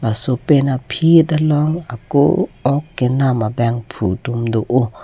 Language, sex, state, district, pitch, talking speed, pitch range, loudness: Karbi, male, Assam, Karbi Anglong, 130 Hz, 130 wpm, 115-145 Hz, -16 LUFS